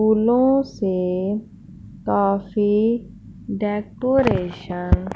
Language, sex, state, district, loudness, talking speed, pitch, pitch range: Hindi, female, Punjab, Fazilka, -21 LUFS, 60 wpm, 210 Hz, 195-230 Hz